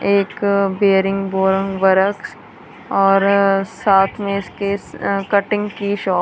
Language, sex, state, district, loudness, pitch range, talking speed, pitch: Hindi, female, Punjab, Kapurthala, -17 LUFS, 195-200 Hz, 105 wpm, 195 Hz